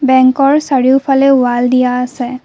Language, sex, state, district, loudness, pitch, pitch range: Assamese, female, Assam, Kamrup Metropolitan, -11 LUFS, 260 Hz, 250-275 Hz